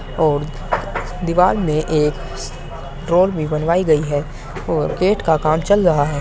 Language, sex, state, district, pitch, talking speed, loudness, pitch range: Hindi, male, Uttar Pradesh, Muzaffarnagar, 155 Hz, 155 wpm, -18 LUFS, 145-175 Hz